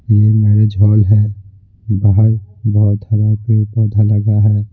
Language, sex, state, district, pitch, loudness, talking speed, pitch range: Hindi, male, Bihar, Patna, 105 Hz, -13 LUFS, 140 wpm, 105-110 Hz